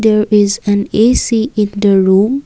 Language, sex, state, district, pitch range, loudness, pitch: English, female, Assam, Kamrup Metropolitan, 200-225 Hz, -12 LUFS, 210 Hz